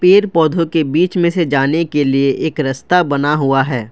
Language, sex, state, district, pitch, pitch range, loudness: Hindi, male, Assam, Kamrup Metropolitan, 155 Hz, 135-170 Hz, -14 LUFS